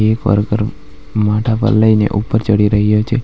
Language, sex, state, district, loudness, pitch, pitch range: Gujarati, male, Gujarat, Valsad, -14 LUFS, 105 Hz, 105-110 Hz